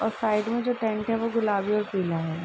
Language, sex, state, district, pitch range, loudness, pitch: Hindi, female, Uttar Pradesh, Ghazipur, 200-225 Hz, -26 LUFS, 215 Hz